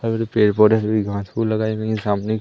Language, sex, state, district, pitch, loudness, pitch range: Hindi, male, Madhya Pradesh, Umaria, 110 Hz, -19 LUFS, 105-110 Hz